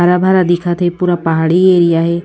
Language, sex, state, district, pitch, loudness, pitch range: Hindi, female, Chhattisgarh, Raipur, 175 Hz, -12 LUFS, 170-180 Hz